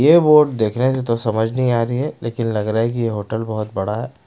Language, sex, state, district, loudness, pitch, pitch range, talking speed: Hindi, male, Odisha, Malkangiri, -18 LUFS, 115 Hz, 110-130 Hz, 295 wpm